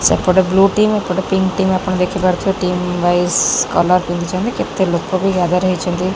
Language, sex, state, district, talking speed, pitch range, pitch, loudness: Odia, female, Odisha, Khordha, 165 wpm, 180-190 Hz, 185 Hz, -15 LUFS